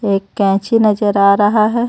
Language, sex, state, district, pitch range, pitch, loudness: Hindi, female, Jharkhand, Ranchi, 200-215 Hz, 205 Hz, -13 LUFS